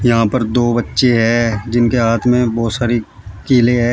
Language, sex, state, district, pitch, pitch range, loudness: Hindi, male, Uttar Pradesh, Shamli, 120 Hz, 115-120 Hz, -14 LUFS